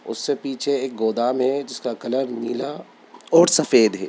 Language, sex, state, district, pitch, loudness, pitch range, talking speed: Hindi, male, Bihar, Sitamarhi, 130 Hz, -21 LUFS, 120-135 Hz, 160 wpm